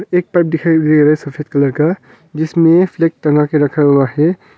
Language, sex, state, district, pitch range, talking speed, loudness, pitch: Hindi, male, Arunachal Pradesh, Longding, 150-165 Hz, 210 wpm, -13 LUFS, 155 Hz